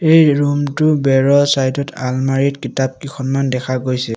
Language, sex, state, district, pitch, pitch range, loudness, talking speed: Assamese, male, Assam, Sonitpur, 135 Hz, 130-145 Hz, -16 LUFS, 160 wpm